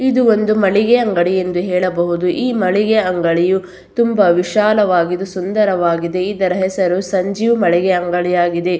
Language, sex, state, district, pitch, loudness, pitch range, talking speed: Kannada, female, Karnataka, Belgaum, 185 Hz, -15 LUFS, 175-210 Hz, 125 wpm